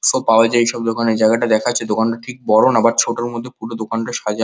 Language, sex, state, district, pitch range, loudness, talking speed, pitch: Bengali, male, West Bengal, Kolkata, 110-120 Hz, -16 LUFS, 230 wpm, 115 Hz